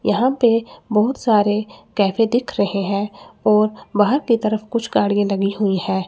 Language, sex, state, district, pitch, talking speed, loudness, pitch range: Hindi, female, Chandigarh, Chandigarh, 210 Hz, 170 wpm, -19 LUFS, 200-230 Hz